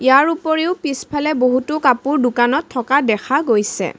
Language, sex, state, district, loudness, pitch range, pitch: Assamese, female, Assam, Kamrup Metropolitan, -17 LUFS, 250-305 Hz, 275 Hz